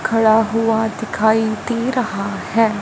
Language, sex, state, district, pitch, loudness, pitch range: Hindi, female, Punjab, Fazilka, 220 Hz, -18 LUFS, 215-225 Hz